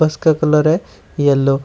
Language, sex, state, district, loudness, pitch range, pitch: Hindi, male, Uttar Pradesh, Shamli, -15 LUFS, 140-155 Hz, 155 Hz